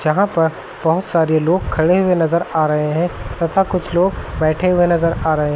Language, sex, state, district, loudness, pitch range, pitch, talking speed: Hindi, male, Uttar Pradesh, Lucknow, -17 LUFS, 155-180 Hz, 165 Hz, 205 wpm